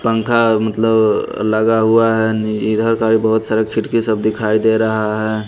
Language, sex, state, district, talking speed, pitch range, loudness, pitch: Hindi, male, Haryana, Rohtak, 165 wpm, 110-115 Hz, -15 LUFS, 110 Hz